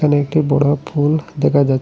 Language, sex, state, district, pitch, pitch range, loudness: Bengali, male, Assam, Hailakandi, 145 Hz, 140-150 Hz, -16 LUFS